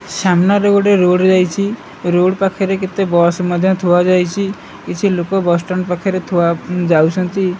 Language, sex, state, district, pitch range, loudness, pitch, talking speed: Odia, male, Odisha, Malkangiri, 175-195 Hz, -14 LUFS, 185 Hz, 140 wpm